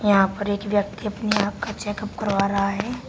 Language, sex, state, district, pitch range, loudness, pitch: Hindi, female, Uttar Pradesh, Shamli, 200-210 Hz, -24 LUFS, 205 Hz